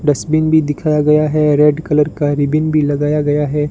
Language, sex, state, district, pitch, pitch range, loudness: Hindi, male, Rajasthan, Bikaner, 150 Hz, 145-155 Hz, -14 LUFS